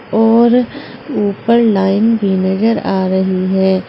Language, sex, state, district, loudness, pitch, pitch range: Hindi, female, Uttar Pradesh, Saharanpur, -13 LUFS, 205 Hz, 190-230 Hz